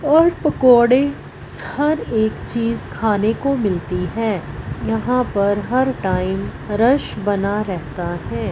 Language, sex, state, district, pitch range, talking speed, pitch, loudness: Hindi, female, Punjab, Fazilka, 180-250 Hz, 120 wpm, 210 Hz, -19 LUFS